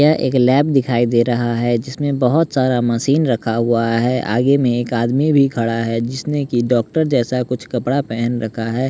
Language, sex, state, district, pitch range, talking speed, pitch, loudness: Hindi, male, Bihar, West Champaran, 120-135 Hz, 200 wpm, 125 Hz, -17 LUFS